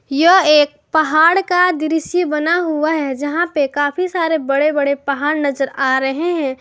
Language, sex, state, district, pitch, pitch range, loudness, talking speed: Hindi, female, Jharkhand, Garhwa, 305 Hz, 280-335 Hz, -16 LUFS, 170 wpm